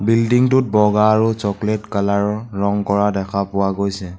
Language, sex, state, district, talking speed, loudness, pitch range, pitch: Assamese, male, Assam, Sonitpur, 145 wpm, -17 LUFS, 100-110 Hz, 105 Hz